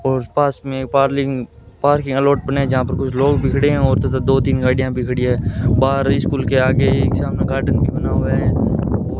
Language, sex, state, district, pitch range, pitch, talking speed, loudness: Hindi, male, Rajasthan, Bikaner, 130-135 Hz, 135 Hz, 230 wpm, -17 LUFS